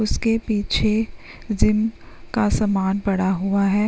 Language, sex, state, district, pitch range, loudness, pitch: Hindi, female, Uttarakhand, Uttarkashi, 195-215 Hz, -21 LUFS, 210 Hz